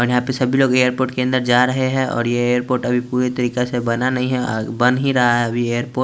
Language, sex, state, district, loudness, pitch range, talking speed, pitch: Hindi, male, Chandigarh, Chandigarh, -18 LUFS, 120-130 Hz, 250 wpm, 125 Hz